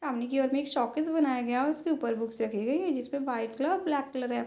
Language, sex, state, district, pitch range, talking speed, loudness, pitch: Hindi, female, Bihar, Darbhanga, 240-295 Hz, 280 wpm, -30 LUFS, 270 Hz